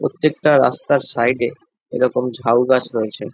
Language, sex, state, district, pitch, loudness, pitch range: Bengali, male, West Bengal, Jalpaiguri, 125 Hz, -18 LUFS, 120-150 Hz